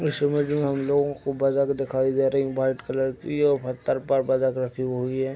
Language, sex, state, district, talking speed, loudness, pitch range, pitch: Hindi, male, Uttar Pradesh, Deoria, 235 wpm, -24 LUFS, 130-140 Hz, 135 Hz